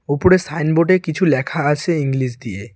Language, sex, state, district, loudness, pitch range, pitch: Bengali, male, West Bengal, Alipurduar, -17 LUFS, 135-170 Hz, 150 Hz